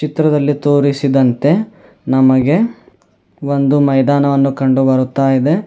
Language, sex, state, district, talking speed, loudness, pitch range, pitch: Kannada, male, Karnataka, Bidar, 85 wpm, -13 LUFS, 135-150 Hz, 140 Hz